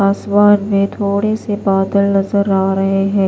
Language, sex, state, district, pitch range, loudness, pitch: Hindi, female, Maharashtra, Washim, 195-205 Hz, -14 LUFS, 200 Hz